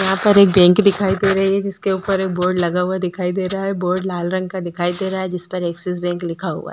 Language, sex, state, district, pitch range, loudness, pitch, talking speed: Hindi, female, Goa, North and South Goa, 180-195 Hz, -18 LUFS, 185 Hz, 295 wpm